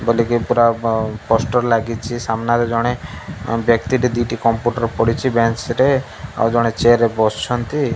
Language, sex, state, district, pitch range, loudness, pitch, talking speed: Odia, male, Odisha, Malkangiri, 115-120 Hz, -17 LUFS, 115 Hz, 145 wpm